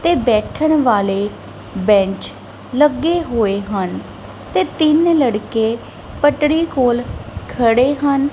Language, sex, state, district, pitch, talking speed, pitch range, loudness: Punjabi, female, Punjab, Kapurthala, 245 Hz, 100 wpm, 200-295 Hz, -16 LUFS